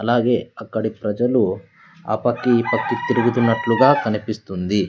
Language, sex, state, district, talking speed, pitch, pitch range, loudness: Telugu, male, Andhra Pradesh, Sri Satya Sai, 110 wpm, 115 Hz, 110-120 Hz, -19 LUFS